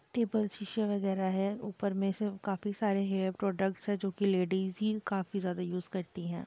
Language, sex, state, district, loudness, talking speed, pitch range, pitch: Hindi, female, Bihar, Purnia, -33 LUFS, 195 wpm, 190-205 Hz, 195 Hz